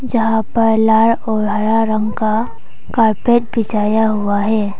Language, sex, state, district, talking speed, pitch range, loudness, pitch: Hindi, female, Arunachal Pradesh, Papum Pare, 135 wpm, 215-225 Hz, -15 LUFS, 220 Hz